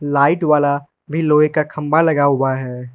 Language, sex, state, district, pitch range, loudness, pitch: Hindi, male, Arunachal Pradesh, Lower Dibang Valley, 140-155 Hz, -16 LUFS, 145 Hz